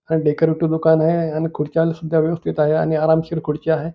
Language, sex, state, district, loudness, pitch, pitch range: Marathi, male, Maharashtra, Nagpur, -19 LUFS, 160 Hz, 155-165 Hz